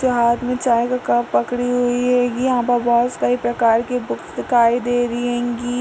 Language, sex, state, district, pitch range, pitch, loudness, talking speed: Hindi, female, Uttar Pradesh, Jalaun, 235-245 Hz, 245 Hz, -18 LUFS, 195 wpm